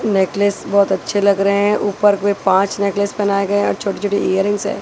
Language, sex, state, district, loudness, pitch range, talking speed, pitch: Hindi, female, Chhattisgarh, Raipur, -16 LUFS, 200-205 Hz, 210 wpm, 200 Hz